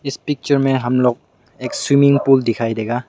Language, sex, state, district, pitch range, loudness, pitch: Hindi, male, Meghalaya, West Garo Hills, 120-140 Hz, -16 LUFS, 135 Hz